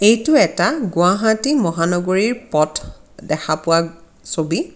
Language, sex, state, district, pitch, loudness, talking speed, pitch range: Assamese, female, Assam, Kamrup Metropolitan, 175 Hz, -17 LUFS, 100 wpm, 165-225 Hz